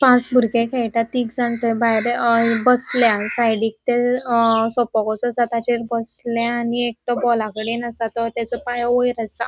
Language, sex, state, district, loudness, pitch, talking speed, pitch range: Konkani, female, Goa, North and South Goa, -19 LUFS, 235 Hz, 165 wpm, 230-245 Hz